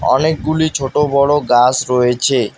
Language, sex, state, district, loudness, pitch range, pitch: Bengali, male, West Bengal, Alipurduar, -14 LUFS, 125-150 Hz, 140 Hz